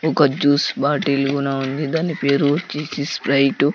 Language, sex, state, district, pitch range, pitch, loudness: Telugu, male, Andhra Pradesh, Sri Satya Sai, 140-150 Hz, 140 Hz, -19 LUFS